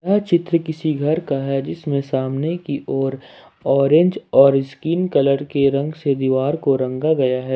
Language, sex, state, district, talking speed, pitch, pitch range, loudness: Hindi, male, Jharkhand, Ranchi, 175 wpm, 140 Hz, 135-160 Hz, -19 LUFS